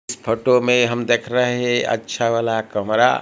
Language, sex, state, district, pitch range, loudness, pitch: Hindi, male, Odisha, Malkangiri, 115-125 Hz, -19 LUFS, 120 Hz